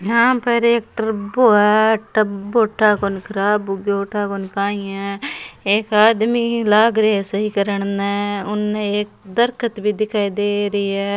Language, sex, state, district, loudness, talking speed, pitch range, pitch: Rajasthani, female, Rajasthan, Churu, -18 LUFS, 160 wpm, 200-220 Hz, 210 Hz